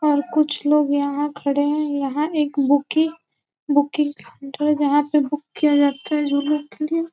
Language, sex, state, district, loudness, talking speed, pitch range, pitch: Hindi, female, Bihar, Gopalganj, -20 LUFS, 175 wpm, 285-300 Hz, 295 Hz